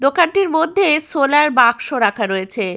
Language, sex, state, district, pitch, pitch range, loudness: Bengali, female, West Bengal, Malda, 285 Hz, 230-320 Hz, -15 LUFS